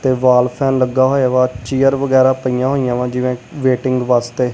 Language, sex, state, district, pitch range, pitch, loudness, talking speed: Punjabi, male, Punjab, Kapurthala, 125-130 Hz, 130 Hz, -15 LUFS, 170 wpm